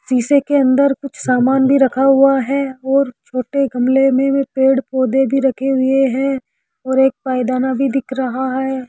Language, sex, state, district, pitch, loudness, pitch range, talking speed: Hindi, male, Rajasthan, Jaipur, 265 Hz, -15 LUFS, 260-275 Hz, 175 wpm